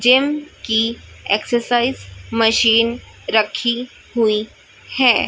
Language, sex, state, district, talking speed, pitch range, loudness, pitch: Hindi, female, Chhattisgarh, Raipur, 80 wpm, 220-245 Hz, -18 LUFS, 235 Hz